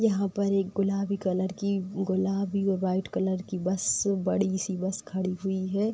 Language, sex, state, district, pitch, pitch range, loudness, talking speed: Hindi, female, Uttar Pradesh, Etah, 195 Hz, 190-200 Hz, -28 LUFS, 180 wpm